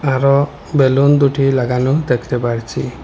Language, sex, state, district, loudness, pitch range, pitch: Bengali, male, Assam, Hailakandi, -15 LUFS, 125-140 Hz, 135 Hz